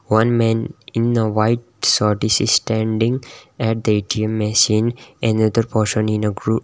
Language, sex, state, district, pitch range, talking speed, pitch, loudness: English, male, Sikkim, Gangtok, 110-115 Hz, 155 wpm, 110 Hz, -18 LUFS